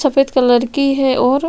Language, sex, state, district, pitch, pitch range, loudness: Hindi, female, Chhattisgarh, Sukma, 270 Hz, 255-275 Hz, -14 LUFS